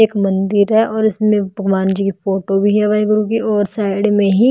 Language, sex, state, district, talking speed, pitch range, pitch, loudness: Hindi, female, Haryana, Jhajjar, 225 wpm, 195-215 Hz, 205 Hz, -15 LUFS